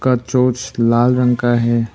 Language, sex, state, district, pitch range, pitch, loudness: Hindi, male, Arunachal Pradesh, Papum Pare, 120-125 Hz, 120 Hz, -15 LUFS